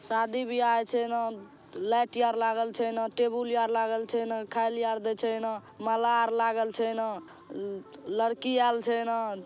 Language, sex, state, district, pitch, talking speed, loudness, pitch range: Maithili, female, Bihar, Saharsa, 230 Hz, 170 wpm, -29 LUFS, 225-235 Hz